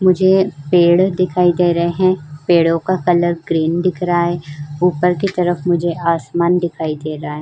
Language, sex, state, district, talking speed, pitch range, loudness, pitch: Hindi, female, Uttar Pradesh, Jyotiba Phule Nagar, 180 wpm, 165-180 Hz, -16 LUFS, 175 Hz